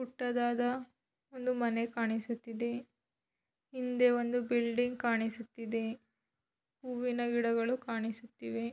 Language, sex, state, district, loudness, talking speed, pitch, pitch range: Kannada, female, Karnataka, Belgaum, -34 LUFS, 75 wpm, 240 Hz, 230-245 Hz